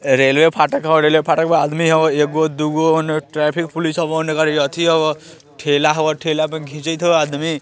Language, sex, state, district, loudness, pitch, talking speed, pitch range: Bajjika, male, Bihar, Vaishali, -16 LUFS, 155 Hz, 220 wpm, 150-160 Hz